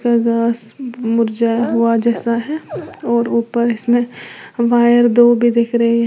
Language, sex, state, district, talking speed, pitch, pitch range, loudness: Hindi, female, Uttar Pradesh, Lalitpur, 140 wpm, 235 Hz, 230-240 Hz, -15 LUFS